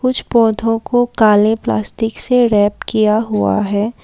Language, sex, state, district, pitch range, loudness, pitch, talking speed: Hindi, female, Assam, Kamrup Metropolitan, 210-230 Hz, -14 LUFS, 220 Hz, 150 wpm